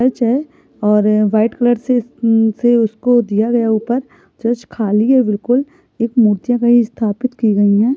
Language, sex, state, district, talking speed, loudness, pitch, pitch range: Hindi, female, Chhattisgarh, Balrampur, 165 wpm, -15 LUFS, 235 Hz, 215-245 Hz